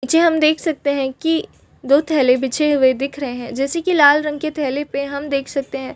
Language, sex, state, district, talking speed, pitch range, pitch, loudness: Hindi, female, Chhattisgarh, Balrampur, 240 wpm, 270-310 Hz, 285 Hz, -18 LUFS